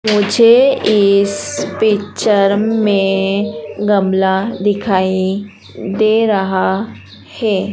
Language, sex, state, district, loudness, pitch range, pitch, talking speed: Hindi, female, Madhya Pradesh, Dhar, -14 LUFS, 190-215 Hz, 200 Hz, 70 wpm